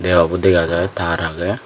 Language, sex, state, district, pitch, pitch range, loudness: Chakma, male, Tripura, Dhalai, 85 Hz, 85-90 Hz, -17 LUFS